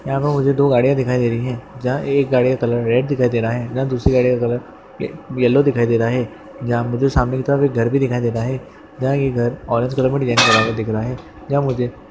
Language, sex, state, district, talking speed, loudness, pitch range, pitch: Hindi, male, West Bengal, Malda, 260 wpm, -18 LUFS, 120-135 Hz, 125 Hz